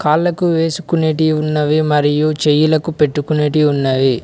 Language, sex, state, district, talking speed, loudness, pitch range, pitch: Telugu, male, Telangana, Mahabubabad, 100 wpm, -15 LUFS, 150-160 Hz, 155 Hz